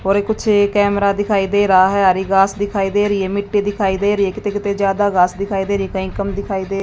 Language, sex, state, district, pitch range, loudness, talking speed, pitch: Hindi, female, Haryana, Jhajjar, 195-205 Hz, -16 LUFS, 280 wpm, 200 Hz